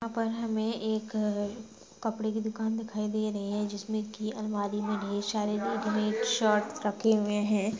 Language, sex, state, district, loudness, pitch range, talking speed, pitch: Hindi, female, Bihar, Gaya, -31 LUFS, 210-220 Hz, 170 wpm, 215 Hz